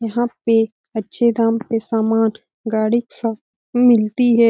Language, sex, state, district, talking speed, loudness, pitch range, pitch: Hindi, female, Bihar, Lakhisarai, 145 wpm, -18 LUFS, 220-235 Hz, 225 Hz